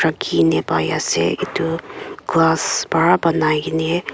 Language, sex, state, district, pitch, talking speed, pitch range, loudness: Nagamese, female, Nagaland, Kohima, 160 Hz, 130 wpm, 155-165 Hz, -18 LUFS